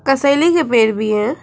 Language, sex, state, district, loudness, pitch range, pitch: Hindi, female, West Bengal, Alipurduar, -14 LUFS, 215-280 Hz, 270 Hz